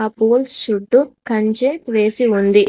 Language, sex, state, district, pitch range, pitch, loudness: Telugu, female, Telangana, Mahabubabad, 215-255 Hz, 225 Hz, -16 LUFS